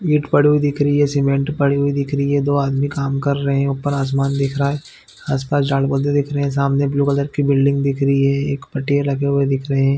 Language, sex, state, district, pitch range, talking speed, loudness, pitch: Hindi, male, Chhattisgarh, Bilaspur, 140-145 Hz, 260 wpm, -18 LUFS, 140 Hz